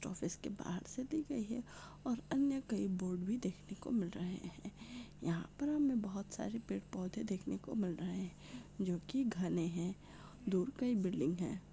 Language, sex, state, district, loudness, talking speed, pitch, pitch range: Hindi, female, Maharashtra, Pune, -40 LUFS, 190 wpm, 205 Hz, 180-245 Hz